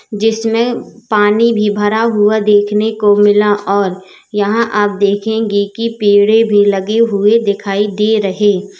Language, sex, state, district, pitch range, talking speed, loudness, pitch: Hindi, female, Uttar Pradesh, Lalitpur, 205-220 Hz, 145 wpm, -12 LUFS, 210 Hz